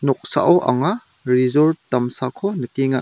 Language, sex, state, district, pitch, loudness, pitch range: Garo, male, Meghalaya, West Garo Hills, 135 Hz, -19 LUFS, 125-165 Hz